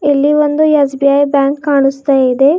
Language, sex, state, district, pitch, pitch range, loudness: Kannada, female, Karnataka, Bidar, 285 Hz, 275-290 Hz, -11 LUFS